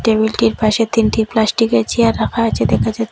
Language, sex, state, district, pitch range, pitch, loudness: Bengali, female, Assam, Hailakandi, 180-225 Hz, 220 Hz, -15 LUFS